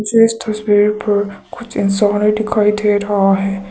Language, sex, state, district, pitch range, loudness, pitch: Hindi, female, Arunachal Pradesh, Papum Pare, 205-215 Hz, -15 LUFS, 210 Hz